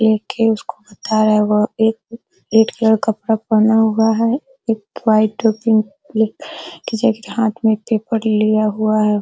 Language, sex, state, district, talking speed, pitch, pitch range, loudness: Hindi, female, Bihar, Araria, 175 wpm, 220 Hz, 215-225 Hz, -16 LUFS